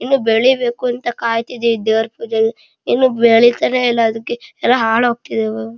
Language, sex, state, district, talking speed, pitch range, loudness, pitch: Kannada, male, Karnataka, Shimoga, 145 wpm, 225-245 Hz, -15 LUFS, 235 Hz